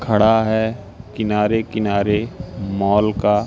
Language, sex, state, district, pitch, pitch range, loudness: Hindi, male, Madhya Pradesh, Katni, 105 Hz, 100-110 Hz, -18 LUFS